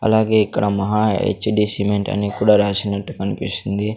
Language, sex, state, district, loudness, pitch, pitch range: Telugu, male, Andhra Pradesh, Sri Satya Sai, -18 LUFS, 105 Hz, 100-105 Hz